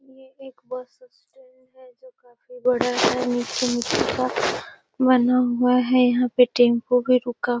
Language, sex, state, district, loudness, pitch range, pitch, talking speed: Magahi, female, Bihar, Gaya, -20 LUFS, 245-260 Hz, 250 Hz, 160 wpm